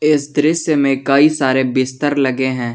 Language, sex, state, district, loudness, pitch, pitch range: Hindi, male, Jharkhand, Garhwa, -15 LUFS, 140 Hz, 130-150 Hz